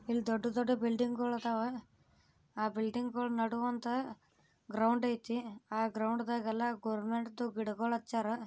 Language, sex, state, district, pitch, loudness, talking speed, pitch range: Kannada, female, Karnataka, Bijapur, 235 Hz, -36 LUFS, 140 wpm, 225-240 Hz